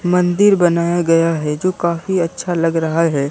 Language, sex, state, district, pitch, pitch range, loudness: Hindi, female, Bihar, Katihar, 170 Hz, 165-180 Hz, -16 LUFS